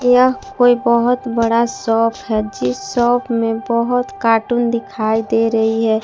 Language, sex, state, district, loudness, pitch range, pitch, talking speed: Hindi, female, Jharkhand, Palamu, -16 LUFS, 225-245 Hz, 235 Hz, 150 wpm